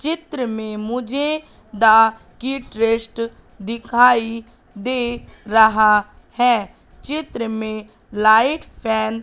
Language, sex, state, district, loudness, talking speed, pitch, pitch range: Hindi, female, Madhya Pradesh, Katni, -18 LUFS, 95 wpm, 230 Hz, 220-250 Hz